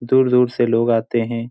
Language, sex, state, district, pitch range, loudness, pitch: Hindi, male, Bihar, Jamui, 115-125 Hz, -17 LUFS, 120 Hz